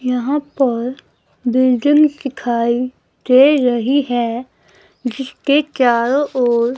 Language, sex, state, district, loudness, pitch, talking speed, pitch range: Hindi, female, Himachal Pradesh, Shimla, -16 LUFS, 255 Hz, 90 wpm, 245-275 Hz